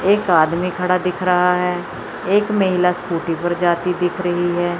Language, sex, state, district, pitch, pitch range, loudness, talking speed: Hindi, female, Chandigarh, Chandigarh, 180 Hz, 175-180 Hz, -18 LUFS, 175 wpm